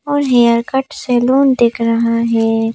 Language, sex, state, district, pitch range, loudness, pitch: Hindi, female, Madhya Pradesh, Bhopal, 230-265 Hz, -13 LUFS, 235 Hz